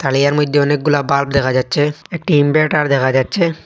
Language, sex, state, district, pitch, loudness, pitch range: Bengali, male, Assam, Hailakandi, 145 Hz, -15 LUFS, 140-150 Hz